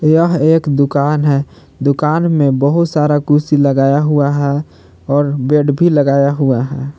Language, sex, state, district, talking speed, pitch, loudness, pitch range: Hindi, male, Jharkhand, Palamu, 155 wpm, 145 Hz, -13 LUFS, 140-150 Hz